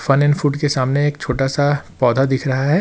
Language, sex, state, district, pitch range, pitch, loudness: Hindi, male, Jharkhand, Ranchi, 135-145 Hz, 145 Hz, -17 LUFS